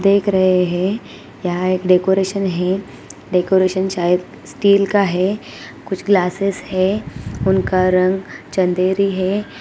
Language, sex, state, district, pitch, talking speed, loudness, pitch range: Hindi, female, Bihar, Gopalganj, 190 Hz, 120 wpm, -17 LUFS, 185-195 Hz